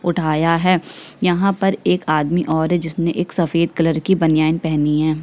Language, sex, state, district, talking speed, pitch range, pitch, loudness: Hindi, female, Chhattisgarh, Kabirdham, 185 wpm, 155-175 Hz, 165 Hz, -18 LUFS